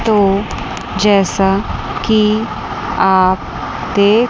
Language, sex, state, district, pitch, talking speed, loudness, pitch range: Hindi, female, Chandigarh, Chandigarh, 200 Hz, 70 wpm, -15 LUFS, 195-215 Hz